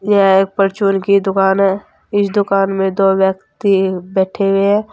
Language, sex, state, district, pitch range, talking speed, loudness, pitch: Hindi, female, Uttar Pradesh, Saharanpur, 190-200 Hz, 170 wpm, -14 LUFS, 195 Hz